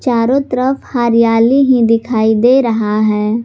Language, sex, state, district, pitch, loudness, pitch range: Hindi, female, Jharkhand, Garhwa, 235 Hz, -12 LUFS, 225-255 Hz